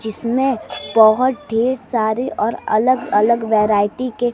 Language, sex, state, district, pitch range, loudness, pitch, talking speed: Hindi, female, Bihar, West Champaran, 215-255 Hz, -17 LUFS, 230 Hz, 125 wpm